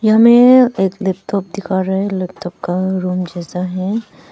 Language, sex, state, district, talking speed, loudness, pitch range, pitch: Hindi, female, Arunachal Pradesh, Papum Pare, 155 wpm, -15 LUFS, 180-205 Hz, 190 Hz